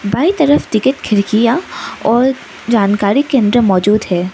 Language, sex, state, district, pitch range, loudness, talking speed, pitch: Hindi, female, Arunachal Pradesh, Lower Dibang Valley, 205-280 Hz, -13 LUFS, 125 wpm, 230 Hz